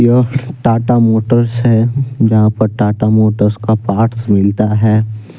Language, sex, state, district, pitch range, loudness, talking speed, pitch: Hindi, male, Jharkhand, Deoghar, 110-120 Hz, -13 LUFS, 135 wpm, 110 Hz